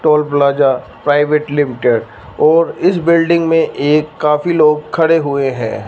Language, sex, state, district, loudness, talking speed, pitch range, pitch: Hindi, male, Punjab, Fazilka, -13 LUFS, 145 wpm, 140-160 Hz, 150 Hz